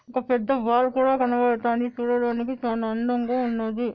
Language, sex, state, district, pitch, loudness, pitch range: Telugu, female, Andhra Pradesh, Anantapur, 245 Hz, -24 LUFS, 235-250 Hz